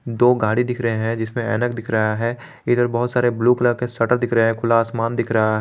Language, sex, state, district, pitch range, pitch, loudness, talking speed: Hindi, male, Jharkhand, Garhwa, 115-120 Hz, 120 Hz, -19 LUFS, 265 wpm